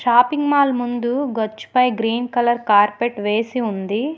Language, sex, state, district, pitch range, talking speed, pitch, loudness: Telugu, female, Telangana, Hyderabad, 220-250 Hz, 145 wpm, 240 Hz, -19 LUFS